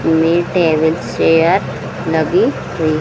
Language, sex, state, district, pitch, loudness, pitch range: Hindi, female, Bihar, Saran, 160 Hz, -15 LUFS, 155-165 Hz